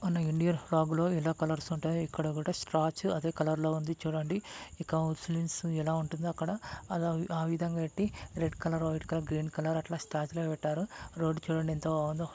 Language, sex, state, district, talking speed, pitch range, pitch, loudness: Telugu, male, Andhra Pradesh, Guntur, 105 wpm, 160-170 Hz, 160 Hz, -33 LUFS